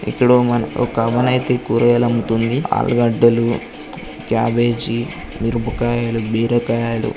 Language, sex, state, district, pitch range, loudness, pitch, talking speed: Telugu, male, Telangana, Karimnagar, 115-120 Hz, -17 LUFS, 120 Hz, 75 wpm